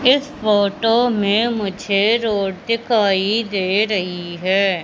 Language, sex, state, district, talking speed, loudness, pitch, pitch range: Hindi, female, Madhya Pradesh, Katni, 110 wpm, -18 LUFS, 205 Hz, 195-230 Hz